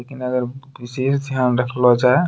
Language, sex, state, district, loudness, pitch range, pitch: Angika, male, Bihar, Bhagalpur, -19 LUFS, 125-135 Hz, 125 Hz